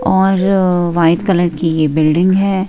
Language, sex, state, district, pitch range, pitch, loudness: Hindi, female, Himachal Pradesh, Shimla, 165-190 Hz, 180 Hz, -13 LUFS